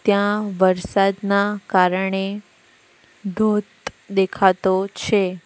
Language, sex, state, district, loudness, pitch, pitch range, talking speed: Gujarati, female, Gujarat, Valsad, -20 LUFS, 195 Hz, 190-205 Hz, 65 wpm